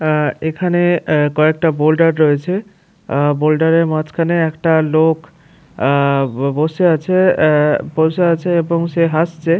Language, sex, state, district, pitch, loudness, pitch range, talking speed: Bengali, male, West Bengal, Paschim Medinipur, 160 Hz, -15 LUFS, 155-170 Hz, 130 wpm